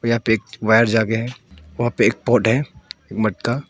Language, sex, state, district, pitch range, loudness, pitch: Hindi, male, Arunachal Pradesh, Longding, 110-120 Hz, -19 LUFS, 115 Hz